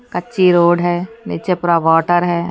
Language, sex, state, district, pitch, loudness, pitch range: Hindi, female, Haryana, Charkhi Dadri, 175 Hz, -15 LUFS, 170-180 Hz